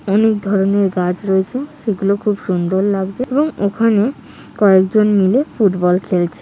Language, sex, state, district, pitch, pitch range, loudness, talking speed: Bengali, female, West Bengal, Jhargram, 200 Hz, 190-215 Hz, -16 LUFS, 160 wpm